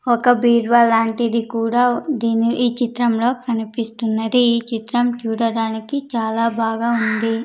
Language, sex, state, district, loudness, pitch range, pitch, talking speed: Telugu, female, Andhra Pradesh, Sri Satya Sai, -18 LUFS, 225-240 Hz, 235 Hz, 115 wpm